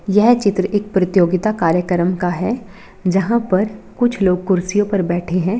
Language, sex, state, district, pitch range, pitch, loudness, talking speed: Hindi, female, Bihar, Darbhanga, 180-210 Hz, 190 Hz, -17 LUFS, 160 wpm